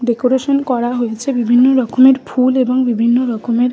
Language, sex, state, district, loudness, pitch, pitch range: Bengali, female, West Bengal, Malda, -14 LUFS, 250 Hz, 240-260 Hz